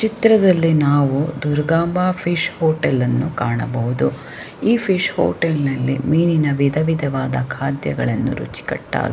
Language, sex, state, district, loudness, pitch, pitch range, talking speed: Kannada, female, Karnataka, Shimoga, -18 LUFS, 150 Hz, 135-170 Hz, 85 wpm